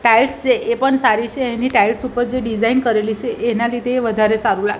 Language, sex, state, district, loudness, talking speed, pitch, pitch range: Gujarati, female, Gujarat, Gandhinagar, -17 LUFS, 235 wpm, 235 Hz, 225-255 Hz